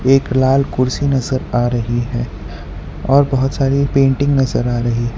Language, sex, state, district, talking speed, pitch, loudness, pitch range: Hindi, male, Gujarat, Valsad, 175 wpm, 130 Hz, -16 LUFS, 120-135 Hz